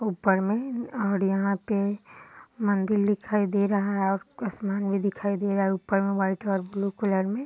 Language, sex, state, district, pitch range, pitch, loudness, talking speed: Hindi, female, Bihar, Purnia, 195-205 Hz, 200 Hz, -26 LUFS, 185 wpm